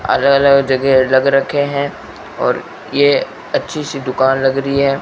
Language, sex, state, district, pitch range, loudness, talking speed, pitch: Hindi, male, Rajasthan, Bikaner, 135-140 Hz, -15 LUFS, 165 wpm, 140 Hz